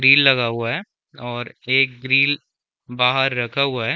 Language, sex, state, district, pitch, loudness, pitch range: Hindi, male, Chhattisgarh, Bilaspur, 130 Hz, -19 LUFS, 120-140 Hz